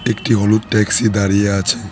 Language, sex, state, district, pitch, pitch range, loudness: Bengali, male, West Bengal, Cooch Behar, 105 Hz, 100-110 Hz, -15 LUFS